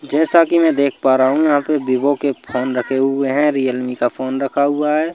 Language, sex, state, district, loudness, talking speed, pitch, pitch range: Hindi, male, Madhya Pradesh, Bhopal, -16 LUFS, 235 wpm, 140 Hz, 130-150 Hz